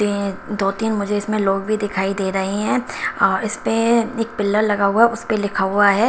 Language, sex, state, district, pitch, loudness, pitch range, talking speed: Hindi, female, Himachal Pradesh, Shimla, 205 Hz, -19 LUFS, 200-220 Hz, 235 wpm